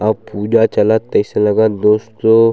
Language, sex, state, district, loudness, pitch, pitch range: Chhattisgarhi, male, Chhattisgarh, Sukma, -14 LUFS, 110 Hz, 105-110 Hz